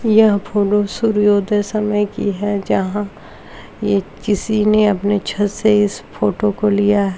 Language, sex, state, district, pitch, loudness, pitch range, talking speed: Hindi, female, Uttar Pradesh, Deoria, 205 Hz, -17 LUFS, 200-210 Hz, 150 wpm